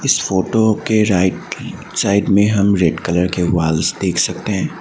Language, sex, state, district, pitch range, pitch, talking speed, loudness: Hindi, male, Assam, Sonitpur, 85-105 Hz, 95 Hz, 175 wpm, -16 LUFS